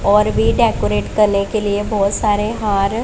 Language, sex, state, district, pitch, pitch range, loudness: Hindi, female, Punjab, Pathankot, 205 Hz, 200-210 Hz, -16 LUFS